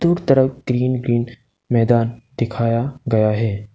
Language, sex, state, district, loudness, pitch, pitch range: Hindi, male, Arunachal Pradesh, Lower Dibang Valley, -19 LUFS, 120 Hz, 115-130 Hz